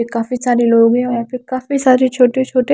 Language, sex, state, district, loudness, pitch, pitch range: Hindi, female, Maharashtra, Washim, -14 LUFS, 250 Hz, 235-255 Hz